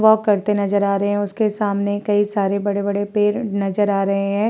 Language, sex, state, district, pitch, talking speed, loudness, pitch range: Hindi, female, Uttar Pradesh, Varanasi, 205 Hz, 215 wpm, -19 LUFS, 200-210 Hz